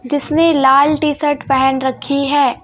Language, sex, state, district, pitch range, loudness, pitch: Hindi, female, Madhya Pradesh, Bhopal, 270-300 Hz, -14 LUFS, 285 Hz